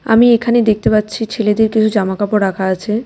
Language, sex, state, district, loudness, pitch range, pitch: Bengali, female, West Bengal, Cooch Behar, -14 LUFS, 205-225 Hz, 215 Hz